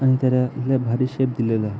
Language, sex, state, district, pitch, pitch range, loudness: Marathi, male, Maharashtra, Aurangabad, 125 Hz, 120-130 Hz, -21 LUFS